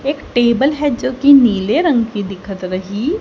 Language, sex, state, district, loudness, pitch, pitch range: Hindi, female, Haryana, Charkhi Dadri, -15 LUFS, 240 Hz, 200-280 Hz